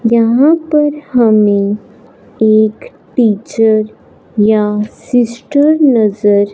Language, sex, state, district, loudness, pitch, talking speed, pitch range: Hindi, male, Punjab, Fazilka, -12 LUFS, 225 Hz, 75 wpm, 210-255 Hz